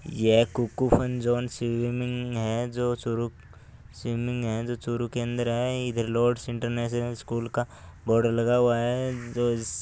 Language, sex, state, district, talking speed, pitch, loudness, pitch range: Hindi, male, Rajasthan, Churu, 130 wpm, 120 Hz, -27 LUFS, 115-120 Hz